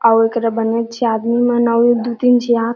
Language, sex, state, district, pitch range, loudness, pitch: Chhattisgarhi, female, Chhattisgarh, Jashpur, 230-240 Hz, -15 LUFS, 235 Hz